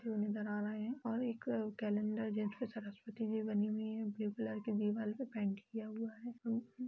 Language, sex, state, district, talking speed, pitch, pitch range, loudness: Hindi, female, Uttar Pradesh, Jalaun, 190 wpm, 220 Hz, 210-230 Hz, -40 LUFS